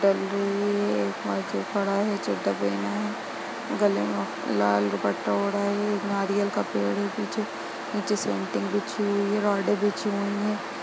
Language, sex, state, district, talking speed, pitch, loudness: Hindi, female, Chhattisgarh, Sarguja, 125 wpm, 195 Hz, -27 LUFS